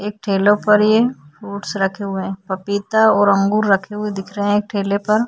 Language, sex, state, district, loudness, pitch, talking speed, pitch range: Hindi, female, Uttar Pradesh, Jyotiba Phule Nagar, -17 LUFS, 205 Hz, 215 wpm, 195-210 Hz